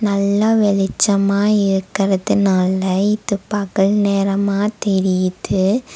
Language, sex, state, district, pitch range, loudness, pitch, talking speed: Tamil, female, Tamil Nadu, Nilgiris, 195-205 Hz, -17 LUFS, 200 Hz, 70 wpm